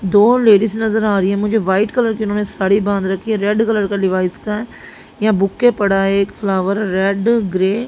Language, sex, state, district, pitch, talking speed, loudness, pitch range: Hindi, female, Haryana, Jhajjar, 205 Hz, 205 wpm, -16 LUFS, 195-220 Hz